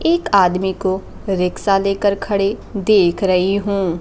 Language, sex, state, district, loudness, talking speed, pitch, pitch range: Hindi, female, Bihar, Kaimur, -17 LUFS, 135 wpm, 195 Hz, 190-200 Hz